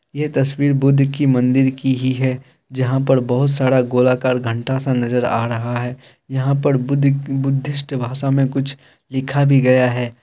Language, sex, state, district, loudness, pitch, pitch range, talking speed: Hindi, male, Bihar, Kishanganj, -18 LUFS, 130 Hz, 125-135 Hz, 175 wpm